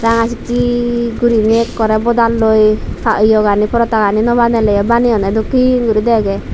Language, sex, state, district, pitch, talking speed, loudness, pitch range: Chakma, female, Tripura, Dhalai, 230 Hz, 135 wpm, -13 LUFS, 215-235 Hz